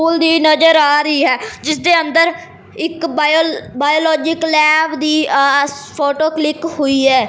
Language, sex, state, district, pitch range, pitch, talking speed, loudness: Punjabi, male, Punjab, Fazilka, 295-325 Hz, 310 Hz, 150 wpm, -13 LUFS